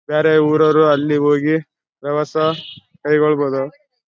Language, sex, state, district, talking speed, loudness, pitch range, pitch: Kannada, male, Karnataka, Bellary, 100 wpm, -16 LUFS, 145-155 Hz, 150 Hz